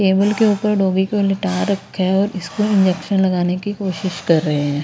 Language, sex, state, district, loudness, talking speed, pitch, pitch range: Hindi, female, Haryana, Rohtak, -18 LUFS, 210 wpm, 190 Hz, 180-200 Hz